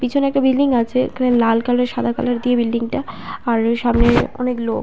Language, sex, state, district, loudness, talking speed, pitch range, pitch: Bengali, female, West Bengal, Paschim Medinipur, -18 LUFS, 185 wpm, 235-255 Hz, 245 Hz